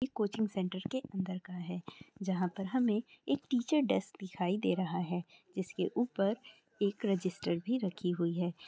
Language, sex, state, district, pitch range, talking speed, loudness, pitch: Hindi, female, Jharkhand, Sahebganj, 180-220 Hz, 175 wpm, -35 LUFS, 190 Hz